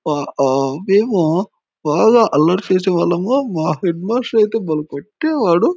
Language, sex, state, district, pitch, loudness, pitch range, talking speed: Telugu, male, Andhra Pradesh, Anantapur, 175 Hz, -16 LUFS, 155-215 Hz, 135 wpm